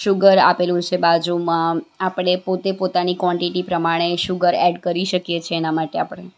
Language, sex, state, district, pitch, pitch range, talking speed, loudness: Gujarati, female, Gujarat, Valsad, 180 Hz, 170-185 Hz, 160 wpm, -19 LUFS